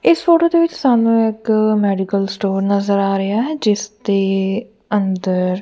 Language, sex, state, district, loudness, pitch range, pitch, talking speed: Punjabi, female, Punjab, Kapurthala, -16 LUFS, 195-230 Hz, 205 Hz, 170 wpm